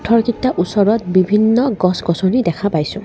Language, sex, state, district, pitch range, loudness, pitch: Assamese, female, Assam, Kamrup Metropolitan, 180-230 Hz, -15 LUFS, 205 Hz